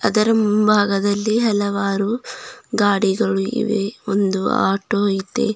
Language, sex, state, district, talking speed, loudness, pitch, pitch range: Kannada, female, Karnataka, Bidar, 85 wpm, -19 LUFS, 205 Hz, 200-220 Hz